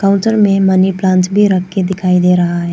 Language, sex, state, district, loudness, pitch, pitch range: Hindi, female, Arunachal Pradesh, Papum Pare, -12 LUFS, 190 Hz, 180-195 Hz